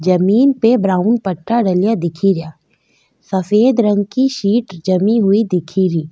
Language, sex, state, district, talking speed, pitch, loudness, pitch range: Rajasthani, female, Rajasthan, Nagaur, 145 wpm, 195 Hz, -15 LUFS, 185-225 Hz